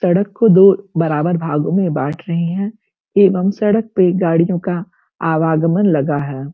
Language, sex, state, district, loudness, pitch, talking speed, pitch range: Hindi, female, Uttar Pradesh, Gorakhpur, -15 LUFS, 175 Hz, 155 wpm, 160-195 Hz